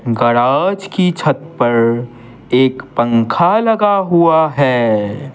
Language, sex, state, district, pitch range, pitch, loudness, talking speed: Hindi, male, Bihar, Patna, 120-170 Hz, 130 Hz, -14 LUFS, 100 wpm